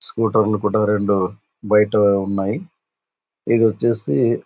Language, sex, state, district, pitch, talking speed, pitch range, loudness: Telugu, male, Andhra Pradesh, Anantapur, 105 Hz, 110 wpm, 105-115 Hz, -18 LUFS